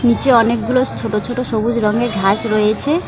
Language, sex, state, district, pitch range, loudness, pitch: Bengali, female, West Bengal, Alipurduar, 215-245 Hz, -15 LUFS, 230 Hz